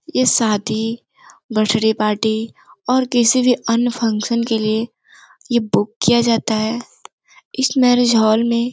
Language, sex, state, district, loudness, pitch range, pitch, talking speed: Hindi, female, Uttar Pradesh, Gorakhpur, -17 LUFS, 220-245 Hz, 230 Hz, 145 wpm